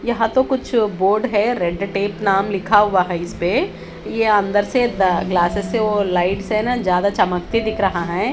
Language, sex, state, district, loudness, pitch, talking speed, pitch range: Hindi, female, Haryana, Charkhi Dadri, -18 LUFS, 200 Hz, 200 wpm, 185-220 Hz